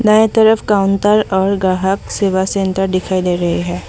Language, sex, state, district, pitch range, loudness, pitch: Hindi, female, Assam, Sonitpur, 185-205 Hz, -14 LUFS, 195 Hz